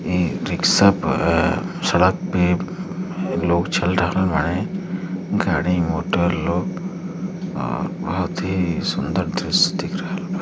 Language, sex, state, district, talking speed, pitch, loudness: Hindi, male, Uttar Pradesh, Gorakhpur, 115 wpm, 100 Hz, -21 LUFS